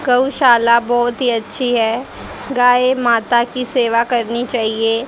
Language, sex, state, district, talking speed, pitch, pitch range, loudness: Hindi, female, Haryana, Jhajjar, 140 wpm, 240 Hz, 235-250 Hz, -15 LUFS